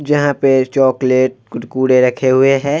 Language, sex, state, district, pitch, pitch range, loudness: Hindi, male, Bihar, Vaishali, 130 Hz, 130-140 Hz, -13 LUFS